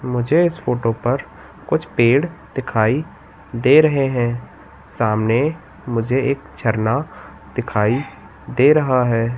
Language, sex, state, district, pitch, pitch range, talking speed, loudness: Hindi, male, Madhya Pradesh, Katni, 120 Hz, 110-140 Hz, 115 wpm, -18 LUFS